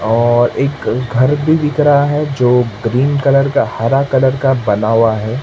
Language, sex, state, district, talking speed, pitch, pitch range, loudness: Hindi, male, Maharashtra, Mumbai Suburban, 190 wpm, 130 Hz, 115-140 Hz, -13 LUFS